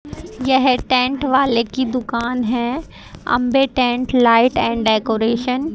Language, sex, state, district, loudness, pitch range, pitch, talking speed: Hindi, female, Haryana, Charkhi Dadri, -17 LUFS, 235-260 Hz, 250 Hz, 125 wpm